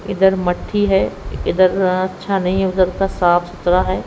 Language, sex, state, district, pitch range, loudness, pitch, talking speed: Hindi, female, Haryana, Rohtak, 180-190 Hz, -17 LUFS, 185 Hz, 175 wpm